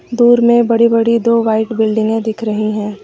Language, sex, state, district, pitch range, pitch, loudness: Hindi, female, Uttar Pradesh, Lucknow, 220-235 Hz, 225 Hz, -13 LUFS